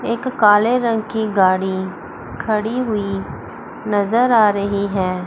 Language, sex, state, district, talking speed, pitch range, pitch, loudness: Hindi, female, Chandigarh, Chandigarh, 125 wpm, 195-230 Hz, 210 Hz, -17 LUFS